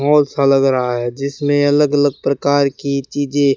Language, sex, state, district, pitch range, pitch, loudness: Hindi, male, Rajasthan, Bikaner, 135-145 Hz, 140 Hz, -16 LUFS